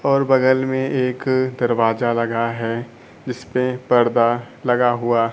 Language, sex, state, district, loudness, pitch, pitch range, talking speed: Hindi, male, Bihar, Kaimur, -19 LUFS, 120 Hz, 120-130 Hz, 135 wpm